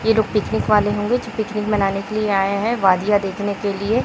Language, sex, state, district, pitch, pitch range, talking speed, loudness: Hindi, female, Chhattisgarh, Raipur, 205 Hz, 200-215 Hz, 235 wpm, -19 LUFS